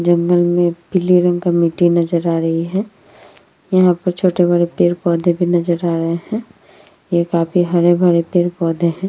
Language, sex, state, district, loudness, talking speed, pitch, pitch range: Hindi, female, Uttar Pradesh, Hamirpur, -16 LUFS, 160 wpm, 175 Hz, 170-180 Hz